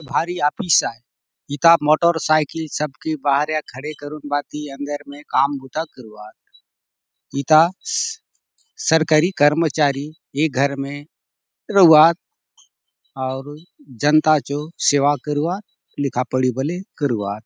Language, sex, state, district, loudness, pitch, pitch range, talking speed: Halbi, male, Chhattisgarh, Bastar, -19 LUFS, 150 Hz, 140-160 Hz, 115 wpm